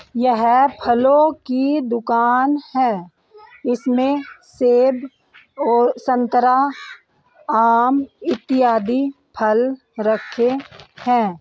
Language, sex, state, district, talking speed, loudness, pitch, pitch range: Hindi, female, Bihar, Begusarai, 75 wpm, -18 LUFS, 250 Hz, 235-270 Hz